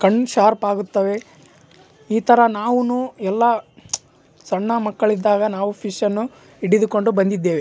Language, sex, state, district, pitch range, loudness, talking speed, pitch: Kannada, male, Karnataka, Raichur, 195-230 Hz, -19 LUFS, 85 wpm, 210 Hz